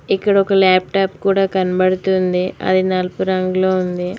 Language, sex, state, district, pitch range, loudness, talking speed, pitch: Telugu, female, Telangana, Mahabubabad, 185-195 Hz, -16 LUFS, 130 wpm, 185 Hz